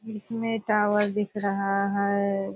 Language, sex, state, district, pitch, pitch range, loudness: Hindi, female, Bihar, Purnia, 205 Hz, 200-215 Hz, -26 LUFS